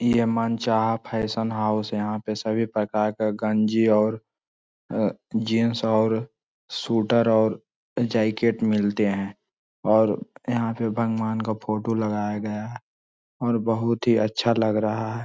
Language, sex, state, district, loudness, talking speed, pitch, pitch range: Hindi, male, Bihar, Lakhisarai, -24 LUFS, 145 wpm, 110 Hz, 110-115 Hz